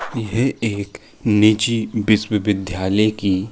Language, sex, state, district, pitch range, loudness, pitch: Hindi, male, Uttar Pradesh, Jalaun, 100-110 Hz, -19 LUFS, 105 Hz